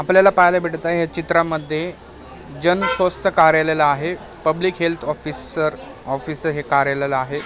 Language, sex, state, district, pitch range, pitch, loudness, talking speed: Marathi, male, Maharashtra, Mumbai Suburban, 150-170 Hz, 160 Hz, -18 LUFS, 135 wpm